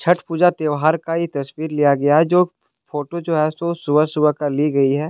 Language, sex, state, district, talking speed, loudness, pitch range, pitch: Hindi, male, Delhi, New Delhi, 225 wpm, -18 LUFS, 145-170 Hz, 155 Hz